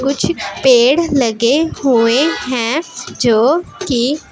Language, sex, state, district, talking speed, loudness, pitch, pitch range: Hindi, female, Punjab, Pathankot, 85 wpm, -14 LUFS, 265 Hz, 240-305 Hz